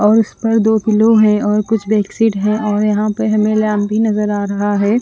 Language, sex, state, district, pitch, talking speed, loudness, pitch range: Hindi, female, Chandigarh, Chandigarh, 215 Hz, 240 wpm, -14 LUFS, 210-220 Hz